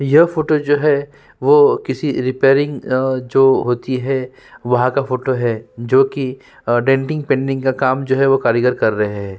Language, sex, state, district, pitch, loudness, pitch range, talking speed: Hindi, male, Uttarakhand, Tehri Garhwal, 130 Hz, -16 LUFS, 125-140 Hz, 165 wpm